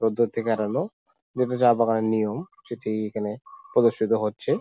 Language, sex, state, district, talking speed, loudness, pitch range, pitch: Bengali, male, West Bengal, Jalpaiguri, 145 wpm, -25 LUFS, 110-120 Hz, 115 Hz